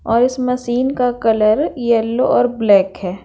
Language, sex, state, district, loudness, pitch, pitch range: Hindi, female, Bihar, Patna, -16 LUFS, 240 Hz, 215-250 Hz